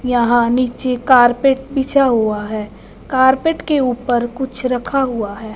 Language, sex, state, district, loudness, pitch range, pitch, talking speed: Hindi, female, Punjab, Fazilka, -16 LUFS, 240-265 Hz, 250 Hz, 140 wpm